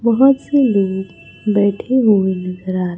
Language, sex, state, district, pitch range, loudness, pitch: Hindi, male, Chhattisgarh, Raipur, 185-240 Hz, -16 LUFS, 200 Hz